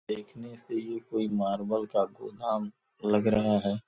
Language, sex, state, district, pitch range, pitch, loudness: Hindi, male, Uttar Pradesh, Gorakhpur, 105-110 Hz, 105 Hz, -30 LUFS